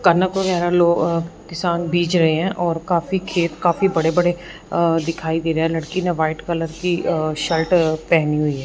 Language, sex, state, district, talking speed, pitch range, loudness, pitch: Hindi, female, Punjab, Fazilka, 195 wpm, 160-175 Hz, -19 LUFS, 170 Hz